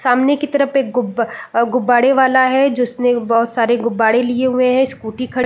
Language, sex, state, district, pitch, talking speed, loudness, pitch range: Hindi, female, Chhattisgarh, Raigarh, 250 Hz, 210 wpm, -15 LUFS, 235-260 Hz